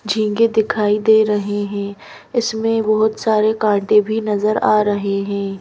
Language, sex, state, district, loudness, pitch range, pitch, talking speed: Hindi, female, Madhya Pradesh, Bhopal, -17 LUFS, 205-220 Hz, 215 Hz, 150 wpm